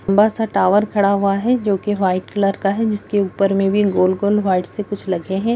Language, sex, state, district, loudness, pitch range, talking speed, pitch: Hindi, female, Bihar, Jamui, -18 LUFS, 195-210 Hz, 225 wpm, 200 Hz